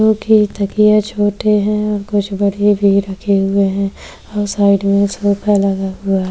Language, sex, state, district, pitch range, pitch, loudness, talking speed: Hindi, female, Maharashtra, Chandrapur, 195-210 Hz, 200 Hz, -15 LUFS, 180 wpm